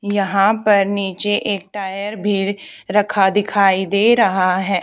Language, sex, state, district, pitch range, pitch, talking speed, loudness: Hindi, female, Haryana, Charkhi Dadri, 195-205 Hz, 200 Hz, 135 wpm, -17 LUFS